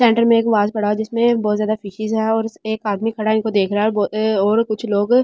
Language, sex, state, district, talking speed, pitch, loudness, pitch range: Hindi, female, Delhi, New Delhi, 250 wpm, 220 Hz, -18 LUFS, 210-225 Hz